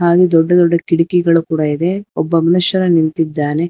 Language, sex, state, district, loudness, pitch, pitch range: Kannada, female, Karnataka, Bangalore, -13 LUFS, 170 Hz, 165-175 Hz